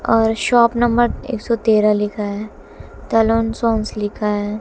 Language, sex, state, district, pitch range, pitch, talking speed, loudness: Hindi, female, Haryana, Jhajjar, 210-230 Hz, 225 Hz, 155 wpm, -17 LUFS